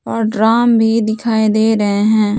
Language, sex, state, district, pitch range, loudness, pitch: Hindi, female, Jharkhand, Palamu, 215-225 Hz, -13 LUFS, 220 Hz